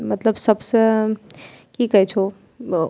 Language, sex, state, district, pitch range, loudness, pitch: Angika, female, Bihar, Bhagalpur, 195-220 Hz, -18 LUFS, 215 Hz